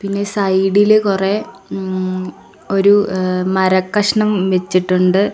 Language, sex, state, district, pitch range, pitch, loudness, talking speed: Malayalam, female, Kerala, Kollam, 185-205 Hz, 195 Hz, -15 LUFS, 100 wpm